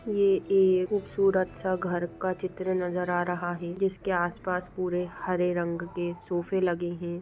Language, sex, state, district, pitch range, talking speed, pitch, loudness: Hindi, female, Jharkhand, Sahebganj, 175-185 Hz, 165 wpm, 180 Hz, -28 LUFS